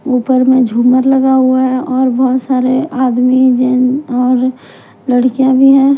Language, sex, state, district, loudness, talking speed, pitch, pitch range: Hindi, female, Punjab, Kapurthala, -11 LUFS, 150 wpm, 260 Hz, 255-265 Hz